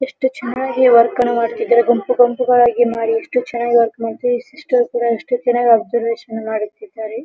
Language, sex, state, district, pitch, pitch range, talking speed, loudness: Kannada, female, Karnataka, Dharwad, 240 Hz, 230-245 Hz, 150 wpm, -16 LUFS